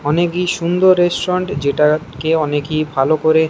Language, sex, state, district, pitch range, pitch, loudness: Bengali, male, West Bengal, Kolkata, 150-175 Hz, 160 Hz, -16 LUFS